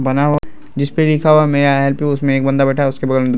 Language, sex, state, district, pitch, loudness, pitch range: Hindi, male, Bihar, Araria, 140 Hz, -14 LUFS, 135-150 Hz